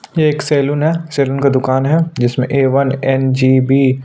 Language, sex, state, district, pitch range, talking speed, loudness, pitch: Hindi, male, Chhattisgarh, Sukma, 130-145 Hz, 180 wpm, -14 LUFS, 135 Hz